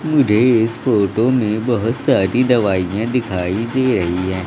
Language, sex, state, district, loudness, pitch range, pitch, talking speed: Hindi, male, Madhya Pradesh, Katni, -16 LUFS, 100-125 Hz, 115 Hz, 150 wpm